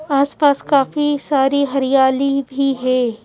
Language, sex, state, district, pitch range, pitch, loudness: Hindi, female, Madhya Pradesh, Bhopal, 270-280 Hz, 275 Hz, -16 LUFS